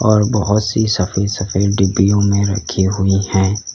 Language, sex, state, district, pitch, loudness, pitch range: Hindi, male, Uttar Pradesh, Lalitpur, 100 Hz, -16 LUFS, 95-105 Hz